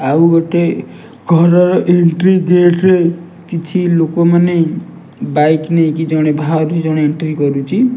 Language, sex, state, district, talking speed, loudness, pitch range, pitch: Odia, male, Odisha, Nuapada, 115 wpm, -12 LUFS, 160-175 Hz, 170 Hz